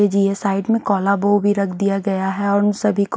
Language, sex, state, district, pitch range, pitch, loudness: Hindi, female, Haryana, Charkhi Dadri, 195-205 Hz, 200 Hz, -18 LUFS